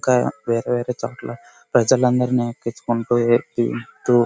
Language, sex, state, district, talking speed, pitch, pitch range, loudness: Telugu, male, Karnataka, Bellary, 85 wpm, 120 Hz, 120-125 Hz, -20 LUFS